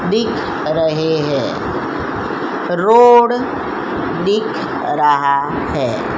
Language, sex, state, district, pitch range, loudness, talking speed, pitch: Hindi, female, Chhattisgarh, Kabirdham, 150-245 Hz, -15 LUFS, 70 wpm, 175 Hz